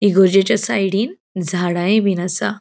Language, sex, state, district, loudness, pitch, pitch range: Konkani, female, Goa, North and South Goa, -17 LUFS, 195 Hz, 180-210 Hz